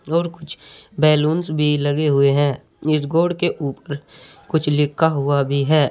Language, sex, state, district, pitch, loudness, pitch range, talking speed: Hindi, male, Uttar Pradesh, Saharanpur, 150 Hz, -19 LUFS, 145-160 Hz, 160 wpm